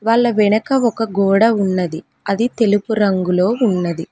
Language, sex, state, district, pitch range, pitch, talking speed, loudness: Telugu, female, Telangana, Mahabubabad, 185-225 Hz, 210 Hz, 130 wpm, -16 LUFS